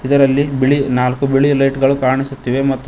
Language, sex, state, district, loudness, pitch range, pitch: Kannada, male, Karnataka, Koppal, -15 LUFS, 130-140 Hz, 135 Hz